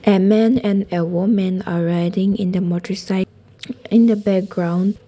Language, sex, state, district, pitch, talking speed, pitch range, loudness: English, female, Nagaland, Dimapur, 195 Hz, 140 wpm, 180-210 Hz, -18 LUFS